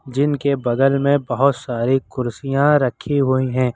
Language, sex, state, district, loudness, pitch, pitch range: Hindi, male, Uttar Pradesh, Lucknow, -18 LUFS, 135 Hz, 125-140 Hz